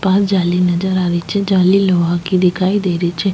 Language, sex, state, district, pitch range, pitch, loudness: Rajasthani, female, Rajasthan, Nagaur, 175-195 Hz, 185 Hz, -15 LUFS